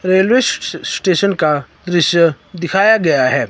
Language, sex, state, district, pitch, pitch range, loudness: Hindi, male, Himachal Pradesh, Shimla, 180 Hz, 165-195 Hz, -14 LUFS